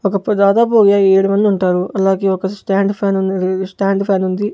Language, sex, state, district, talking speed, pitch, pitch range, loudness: Telugu, male, Andhra Pradesh, Sri Satya Sai, 170 wpm, 195 Hz, 190-200 Hz, -14 LUFS